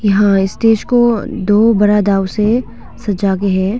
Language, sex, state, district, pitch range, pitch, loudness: Hindi, female, Arunachal Pradesh, Longding, 195-225 Hz, 205 Hz, -13 LUFS